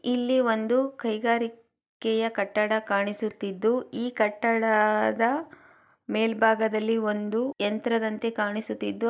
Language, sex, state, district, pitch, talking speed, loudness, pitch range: Kannada, female, Karnataka, Chamarajanagar, 225 Hz, 80 wpm, -26 LUFS, 215-235 Hz